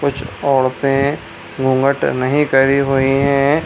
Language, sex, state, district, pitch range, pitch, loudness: Hindi, male, Bihar, Supaul, 135-140 Hz, 135 Hz, -15 LUFS